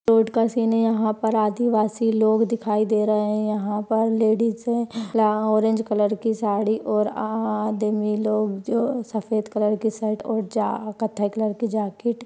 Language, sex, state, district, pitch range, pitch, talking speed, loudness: Hindi, female, Maharashtra, Pune, 215-225 Hz, 220 Hz, 180 wpm, -22 LUFS